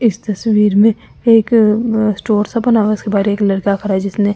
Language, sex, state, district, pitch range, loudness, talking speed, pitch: Hindi, female, Delhi, New Delhi, 205-225 Hz, -14 LUFS, 220 wpm, 210 Hz